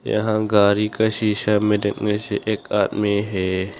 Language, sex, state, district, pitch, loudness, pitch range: Hindi, male, Arunachal Pradesh, Longding, 105 Hz, -20 LUFS, 100-105 Hz